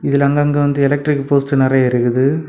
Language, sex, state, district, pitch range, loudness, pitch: Tamil, male, Tamil Nadu, Kanyakumari, 135-145 Hz, -15 LUFS, 140 Hz